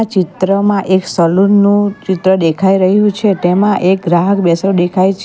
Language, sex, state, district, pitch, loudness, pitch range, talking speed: Gujarati, female, Gujarat, Valsad, 190 Hz, -12 LUFS, 185-200 Hz, 150 wpm